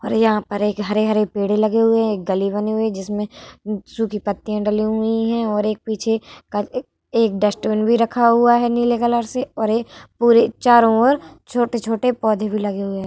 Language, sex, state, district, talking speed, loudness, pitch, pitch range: Hindi, female, Bihar, Vaishali, 200 wpm, -19 LUFS, 220 Hz, 210-235 Hz